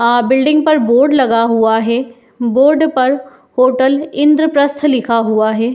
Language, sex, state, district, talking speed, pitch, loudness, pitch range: Hindi, female, Uttar Pradesh, Etah, 145 wpm, 260 Hz, -12 LUFS, 235-285 Hz